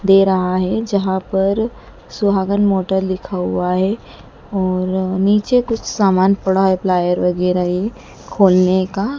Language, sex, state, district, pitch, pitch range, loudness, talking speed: Hindi, female, Madhya Pradesh, Dhar, 190 Hz, 185-200 Hz, -16 LUFS, 135 wpm